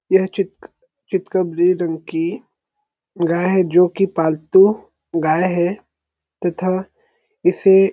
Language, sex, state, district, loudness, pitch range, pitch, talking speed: Hindi, male, Chhattisgarh, Sarguja, -18 LUFS, 175-200 Hz, 185 Hz, 105 wpm